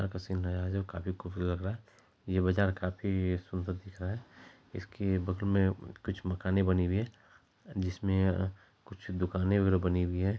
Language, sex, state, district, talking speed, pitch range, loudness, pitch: Maithili, male, Bihar, Supaul, 165 wpm, 90-100 Hz, -33 LUFS, 95 Hz